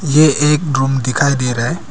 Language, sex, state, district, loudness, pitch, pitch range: Hindi, male, Arunachal Pradesh, Papum Pare, -14 LUFS, 140 Hz, 135-150 Hz